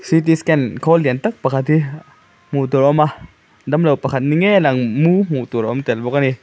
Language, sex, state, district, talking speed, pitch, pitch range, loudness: Mizo, male, Mizoram, Aizawl, 260 wpm, 140 Hz, 130-160 Hz, -16 LUFS